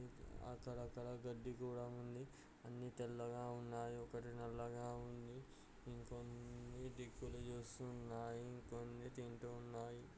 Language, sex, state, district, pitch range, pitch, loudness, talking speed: Telugu, male, Andhra Pradesh, Guntur, 120-125 Hz, 120 Hz, -52 LUFS, 100 wpm